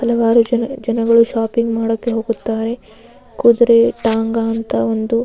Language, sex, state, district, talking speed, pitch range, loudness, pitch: Kannada, female, Karnataka, Raichur, 125 wpm, 225-235 Hz, -16 LUFS, 230 Hz